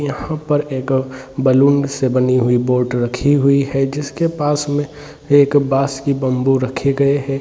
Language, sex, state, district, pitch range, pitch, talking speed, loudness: Hindi, male, Jharkhand, Sahebganj, 130-145 Hz, 140 Hz, 180 wpm, -16 LUFS